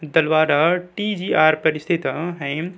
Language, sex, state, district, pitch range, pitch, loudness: Hindi, male, Uttarakhand, Tehri Garhwal, 155-175 Hz, 160 Hz, -19 LUFS